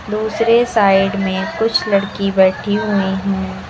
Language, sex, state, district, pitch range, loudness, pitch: Hindi, female, Uttar Pradesh, Lucknow, 195-215 Hz, -16 LUFS, 200 Hz